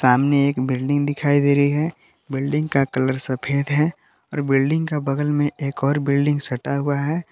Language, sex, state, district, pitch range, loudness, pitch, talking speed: Hindi, male, Jharkhand, Palamu, 135-145 Hz, -21 LUFS, 140 Hz, 190 wpm